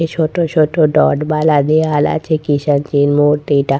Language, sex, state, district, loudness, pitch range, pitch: Bengali, female, West Bengal, Purulia, -14 LUFS, 145-155 Hz, 150 Hz